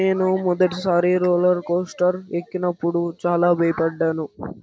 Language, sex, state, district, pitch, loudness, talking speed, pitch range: Telugu, male, Andhra Pradesh, Anantapur, 175 Hz, -21 LUFS, 105 wpm, 170-180 Hz